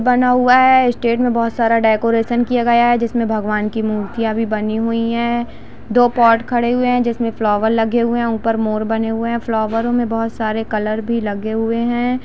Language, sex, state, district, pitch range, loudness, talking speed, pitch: Hindi, female, Jharkhand, Jamtara, 220-240 Hz, -16 LUFS, 220 wpm, 230 Hz